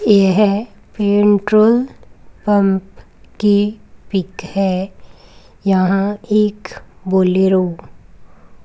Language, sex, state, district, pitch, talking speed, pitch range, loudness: Hindi, female, Rajasthan, Bikaner, 200 Hz, 70 wpm, 190-210 Hz, -16 LUFS